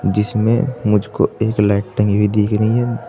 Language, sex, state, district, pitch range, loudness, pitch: Hindi, male, Uttar Pradesh, Saharanpur, 105-115 Hz, -17 LUFS, 105 Hz